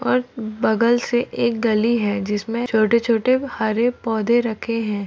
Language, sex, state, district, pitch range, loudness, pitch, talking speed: Hindi, female, Maharashtra, Solapur, 220-240 Hz, -20 LUFS, 230 Hz, 155 wpm